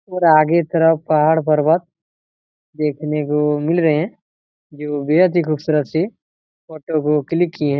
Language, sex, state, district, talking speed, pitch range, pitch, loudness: Hindi, male, Chhattisgarh, Raigarh, 155 wpm, 150-170 Hz, 155 Hz, -17 LUFS